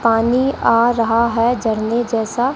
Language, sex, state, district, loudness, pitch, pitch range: Hindi, female, Rajasthan, Bikaner, -16 LUFS, 230 Hz, 225-240 Hz